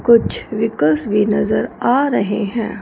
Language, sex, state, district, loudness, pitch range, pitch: Hindi, female, Punjab, Fazilka, -17 LUFS, 210-235 Hz, 215 Hz